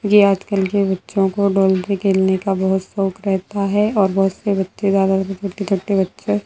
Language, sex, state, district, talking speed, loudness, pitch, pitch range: Hindi, female, Bihar, Samastipur, 215 wpm, -18 LUFS, 195 Hz, 190-200 Hz